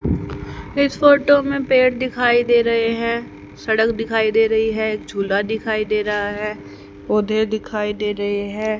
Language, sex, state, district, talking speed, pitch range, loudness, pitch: Hindi, female, Haryana, Charkhi Dadri, 155 wpm, 210-235 Hz, -19 LUFS, 220 Hz